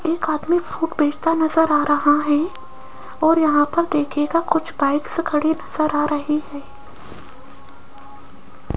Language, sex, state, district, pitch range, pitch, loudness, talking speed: Hindi, female, Rajasthan, Jaipur, 295-325 Hz, 300 Hz, -19 LUFS, 130 wpm